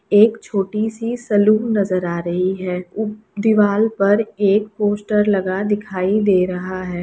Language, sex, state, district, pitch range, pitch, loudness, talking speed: Hindi, female, Bihar, Lakhisarai, 185-215 Hz, 205 Hz, -18 LUFS, 155 wpm